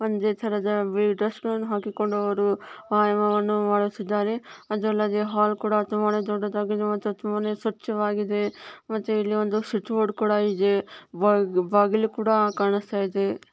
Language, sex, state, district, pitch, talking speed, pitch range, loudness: Kannada, male, Karnataka, Belgaum, 210 Hz, 130 wpm, 205-215 Hz, -25 LUFS